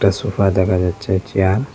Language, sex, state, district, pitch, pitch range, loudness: Bengali, male, Assam, Hailakandi, 95 Hz, 95-105 Hz, -17 LUFS